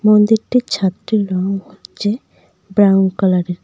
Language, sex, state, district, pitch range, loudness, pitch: Bengali, female, West Bengal, Cooch Behar, 190-210 Hz, -16 LUFS, 200 Hz